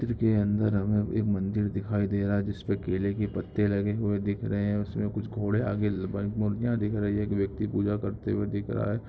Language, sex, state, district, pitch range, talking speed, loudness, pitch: Hindi, male, Bihar, Samastipur, 100-105 Hz, 230 wpm, -29 LUFS, 105 Hz